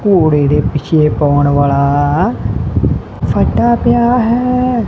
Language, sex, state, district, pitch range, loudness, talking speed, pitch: Punjabi, male, Punjab, Kapurthala, 145-235 Hz, -12 LUFS, 100 wpm, 155 Hz